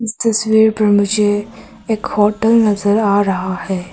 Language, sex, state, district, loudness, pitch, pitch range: Hindi, male, Arunachal Pradesh, Papum Pare, -15 LUFS, 210 Hz, 205-220 Hz